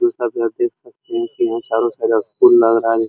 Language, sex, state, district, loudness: Hindi, male, Uttar Pradesh, Muzaffarnagar, -17 LUFS